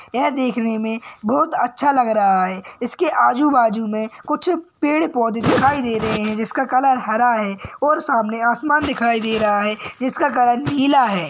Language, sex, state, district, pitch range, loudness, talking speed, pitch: Hindi, male, Uttar Pradesh, Gorakhpur, 220-285 Hz, -18 LUFS, 180 wpm, 245 Hz